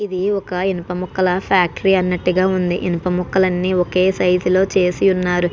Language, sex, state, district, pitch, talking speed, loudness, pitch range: Telugu, female, Andhra Pradesh, Krishna, 185 Hz, 160 wpm, -17 LUFS, 180-190 Hz